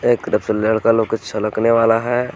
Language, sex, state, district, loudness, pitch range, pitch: Hindi, male, Jharkhand, Garhwa, -17 LUFS, 110-115 Hz, 115 Hz